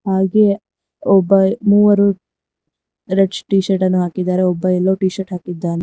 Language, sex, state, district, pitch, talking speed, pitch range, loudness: Kannada, female, Karnataka, Bangalore, 190 Hz, 115 wpm, 185-200 Hz, -16 LUFS